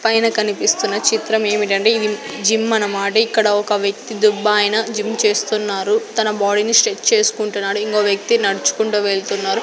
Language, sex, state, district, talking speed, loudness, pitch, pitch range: Telugu, female, Andhra Pradesh, Sri Satya Sai, 130 wpm, -16 LUFS, 215 Hz, 205-225 Hz